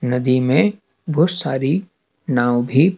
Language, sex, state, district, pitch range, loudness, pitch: Hindi, male, Madhya Pradesh, Dhar, 130-175 Hz, -18 LUFS, 140 Hz